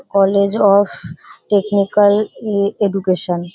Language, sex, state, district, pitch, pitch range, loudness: Bengali, female, West Bengal, Paschim Medinipur, 200 Hz, 195-205 Hz, -15 LUFS